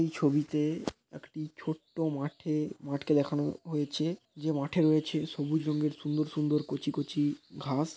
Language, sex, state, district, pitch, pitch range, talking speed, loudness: Bengali, male, West Bengal, Dakshin Dinajpur, 150 Hz, 145-155 Hz, 135 wpm, -32 LUFS